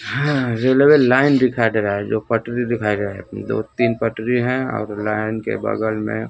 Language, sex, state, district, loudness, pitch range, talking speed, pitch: Hindi, male, Bihar, Kaimur, -19 LUFS, 105-125 Hz, 180 wpm, 115 Hz